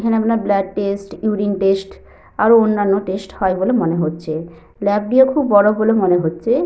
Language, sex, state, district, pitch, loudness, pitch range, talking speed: Bengali, female, Jharkhand, Sahebganj, 200 Hz, -16 LUFS, 190-220 Hz, 180 wpm